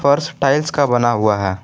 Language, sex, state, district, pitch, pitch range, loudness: Hindi, male, Jharkhand, Garhwa, 135 Hz, 105-145 Hz, -16 LUFS